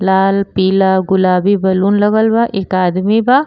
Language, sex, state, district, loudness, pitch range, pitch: Bhojpuri, female, Uttar Pradesh, Gorakhpur, -13 LUFS, 190-205 Hz, 195 Hz